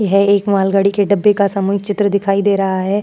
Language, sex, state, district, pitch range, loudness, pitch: Hindi, female, Uttar Pradesh, Jyotiba Phule Nagar, 195-200 Hz, -14 LUFS, 200 Hz